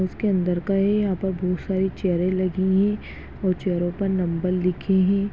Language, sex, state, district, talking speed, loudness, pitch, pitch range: Hindi, male, Chhattisgarh, Balrampur, 200 wpm, -23 LUFS, 190 Hz, 180-195 Hz